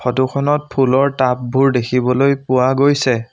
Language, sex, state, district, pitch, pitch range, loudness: Assamese, male, Assam, Sonitpur, 130 Hz, 125-140 Hz, -15 LUFS